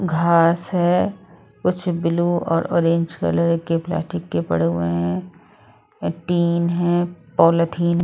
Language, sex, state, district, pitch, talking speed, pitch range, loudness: Hindi, female, Odisha, Sambalpur, 170 Hz, 125 wpm, 165-175 Hz, -20 LUFS